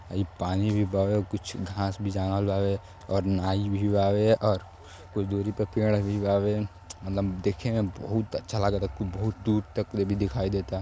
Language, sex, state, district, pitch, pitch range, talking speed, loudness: Bhojpuri, male, Uttar Pradesh, Deoria, 100 Hz, 95-105 Hz, 185 wpm, -28 LUFS